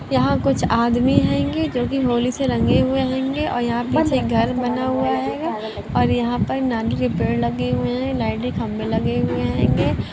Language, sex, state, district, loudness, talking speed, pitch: Hindi, female, Bihar, Gopalganj, -20 LUFS, 200 wpm, 240 Hz